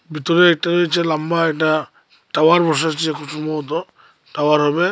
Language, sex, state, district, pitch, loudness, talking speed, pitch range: Bengali, male, Tripura, Unakoti, 160 Hz, -17 LUFS, 135 wpm, 150-170 Hz